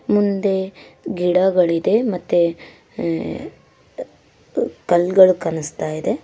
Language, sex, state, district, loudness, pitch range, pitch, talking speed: Kannada, female, Karnataka, Koppal, -19 LUFS, 165-190 Hz, 180 Hz, 85 wpm